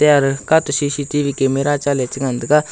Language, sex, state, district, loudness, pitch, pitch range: Wancho, male, Arunachal Pradesh, Longding, -17 LUFS, 140 Hz, 135-145 Hz